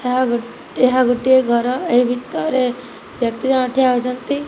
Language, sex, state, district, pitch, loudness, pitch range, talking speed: Odia, female, Odisha, Nuapada, 250 Hz, -17 LUFS, 245-255 Hz, 120 wpm